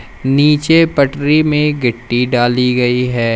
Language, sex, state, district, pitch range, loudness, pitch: Hindi, male, Madhya Pradesh, Umaria, 120-150 Hz, -13 LUFS, 130 Hz